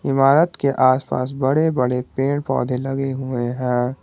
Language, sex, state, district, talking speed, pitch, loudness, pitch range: Hindi, male, Jharkhand, Garhwa, 150 wpm, 135 Hz, -19 LUFS, 125-135 Hz